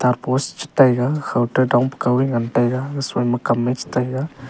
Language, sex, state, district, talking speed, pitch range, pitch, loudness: Wancho, male, Arunachal Pradesh, Longding, 185 wpm, 120-135 Hz, 125 Hz, -19 LUFS